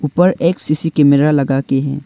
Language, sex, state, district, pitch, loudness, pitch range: Hindi, male, Arunachal Pradesh, Longding, 150 Hz, -14 LUFS, 140-165 Hz